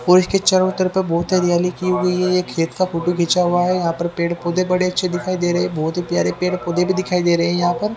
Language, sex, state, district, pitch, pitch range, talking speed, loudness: Hindi, male, Haryana, Jhajjar, 180 Hz, 175-185 Hz, 295 wpm, -18 LUFS